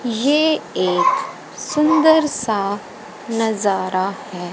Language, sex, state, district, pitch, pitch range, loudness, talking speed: Hindi, female, Haryana, Rohtak, 225 Hz, 195-310 Hz, -18 LUFS, 80 wpm